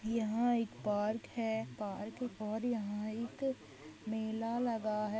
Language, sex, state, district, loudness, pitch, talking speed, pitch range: Hindi, female, Goa, North and South Goa, -37 LUFS, 220 Hz, 125 wpm, 210-230 Hz